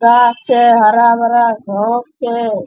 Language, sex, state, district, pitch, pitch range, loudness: Angika, female, Bihar, Bhagalpur, 235 Hz, 230-240 Hz, -12 LUFS